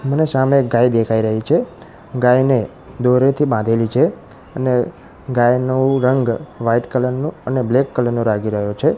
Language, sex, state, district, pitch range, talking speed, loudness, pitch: Gujarati, male, Gujarat, Gandhinagar, 115-135 Hz, 160 wpm, -17 LUFS, 125 Hz